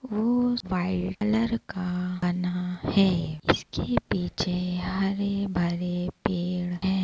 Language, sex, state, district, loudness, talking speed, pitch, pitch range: Hindi, female, Bihar, Begusarai, -27 LUFS, 85 wpm, 180 Hz, 180-200 Hz